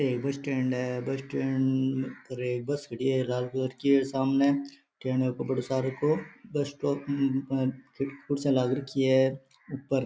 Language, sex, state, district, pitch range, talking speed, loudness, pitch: Rajasthani, male, Rajasthan, Nagaur, 130-140 Hz, 125 wpm, -29 LUFS, 135 Hz